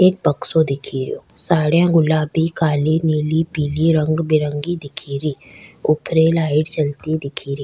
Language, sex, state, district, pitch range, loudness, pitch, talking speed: Rajasthani, female, Rajasthan, Churu, 145-160 Hz, -18 LUFS, 155 Hz, 140 wpm